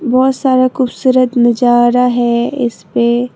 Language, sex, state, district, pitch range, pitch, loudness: Hindi, female, Tripura, Dhalai, 240-255 Hz, 245 Hz, -12 LUFS